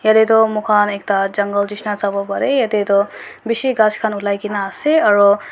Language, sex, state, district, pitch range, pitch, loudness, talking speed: Nagamese, female, Nagaland, Dimapur, 200-220 Hz, 210 Hz, -16 LUFS, 175 wpm